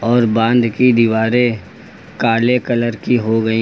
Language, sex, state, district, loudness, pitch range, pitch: Hindi, male, Uttar Pradesh, Lucknow, -15 LUFS, 115-120 Hz, 115 Hz